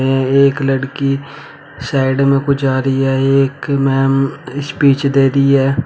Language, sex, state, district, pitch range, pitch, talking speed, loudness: Hindi, male, Uttar Pradesh, Shamli, 135-140 Hz, 135 Hz, 155 wpm, -14 LUFS